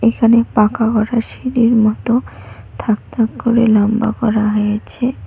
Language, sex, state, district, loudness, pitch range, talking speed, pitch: Bengali, female, West Bengal, Cooch Behar, -15 LUFS, 215-235 Hz, 125 wpm, 225 Hz